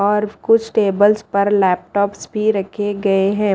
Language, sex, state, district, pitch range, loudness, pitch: Hindi, female, Haryana, Rohtak, 200-210 Hz, -17 LUFS, 205 Hz